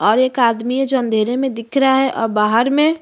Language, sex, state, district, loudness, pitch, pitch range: Hindi, female, Chhattisgarh, Bastar, -16 LUFS, 255 Hz, 230-270 Hz